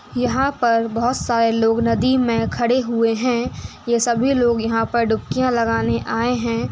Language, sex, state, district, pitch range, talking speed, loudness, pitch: Hindi, female, Uttar Pradesh, Etah, 230-245 Hz, 170 wpm, -19 LUFS, 235 Hz